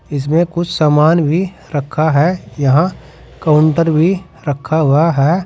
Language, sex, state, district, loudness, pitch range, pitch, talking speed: Hindi, male, Uttar Pradesh, Saharanpur, -14 LUFS, 145-170 Hz, 155 Hz, 130 wpm